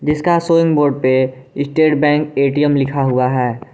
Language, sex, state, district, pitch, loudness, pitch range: Hindi, male, Jharkhand, Garhwa, 145 Hz, -15 LUFS, 130-150 Hz